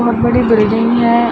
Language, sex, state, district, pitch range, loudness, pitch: Hindi, female, Bihar, Gaya, 225-235 Hz, -12 LUFS, 235 Hz